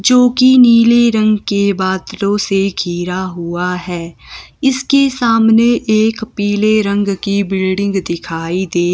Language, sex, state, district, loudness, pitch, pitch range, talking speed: Hindi, female, Himachal Pradesh, Shimla, -13 LUFS, 200 Hz, 185-230 Hz, 125 wpm